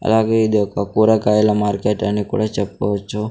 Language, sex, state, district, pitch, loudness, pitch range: Telugu, male, Andhra Pradesh, Sri Satya Sai, 105 Hz, -18 LUFS, 100-110 Hz